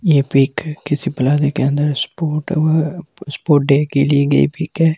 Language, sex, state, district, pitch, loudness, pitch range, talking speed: Hindi, male, Delhi, New Delhi, 150 Hz, -16 LUFS, 140-160 Hz, 170 wpm